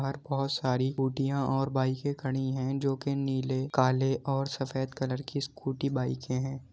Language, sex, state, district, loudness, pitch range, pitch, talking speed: Hindi, male, Uttar Pradesh, Muzaffarnagar, -31 LUFS, 130-140 Hz, 135 Hz, 170 wpm